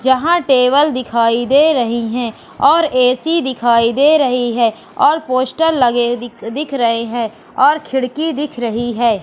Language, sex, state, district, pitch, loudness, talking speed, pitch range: Hindi, female, Madhya Pradesh, Katni, 255 Hz, -15 LUFS, 160 wpm, 235-295 Hz